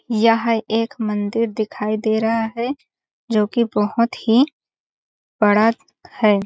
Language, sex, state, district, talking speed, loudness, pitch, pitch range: Hindi, female, Chhattisgarh, Balrampur, 120 wpm, -19 LUFS, 225 Hz, 215-230 Hz